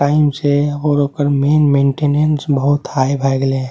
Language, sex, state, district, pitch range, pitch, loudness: Maithili, male, Bihar, Saharsa, 140-145 Hz, 145 Hz, -15 LUFS